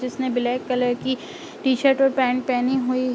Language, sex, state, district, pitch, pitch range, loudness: Hindi, female, Uttar Pradesh, Ghazipur, 255 Hz, 250-260 Hz, -22 LUFS